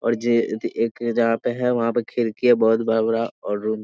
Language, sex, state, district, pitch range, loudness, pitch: Hindi, male, Bihar, Sitamarhi, 115-120 Hz, -21 LUFS, 115 Hz